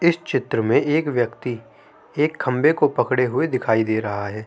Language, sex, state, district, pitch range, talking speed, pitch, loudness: Hindi, male, Uttar Pradesh, Jalaun, 110-145 Hz, 185 wpm, 125 Hz, -21 LUFS